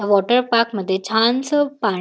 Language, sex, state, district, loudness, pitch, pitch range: Marathi, female, Maharashtra, Dhule, -18 LUFS, 225 Hz, 200-245 Hz